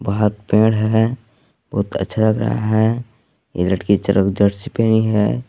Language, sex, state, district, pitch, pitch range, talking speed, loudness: Hindi, male, Jharkhand, Palamu, 110 Hz, 100-110 Hz, 155 wpm, -18 LUFS